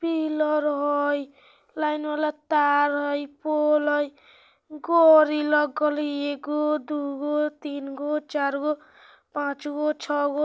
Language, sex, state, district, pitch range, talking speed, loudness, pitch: Bajjika, female, Bihar, Vaishali, 290-300 Hz, 130 wpm, -24 LUFS, 300 Hz